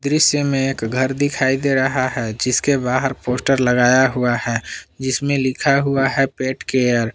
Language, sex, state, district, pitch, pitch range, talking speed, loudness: Hindi, male, Jharkhand, Palamu, 130 Hz, 125-135 Hz, 175 wpm, -18 LUFS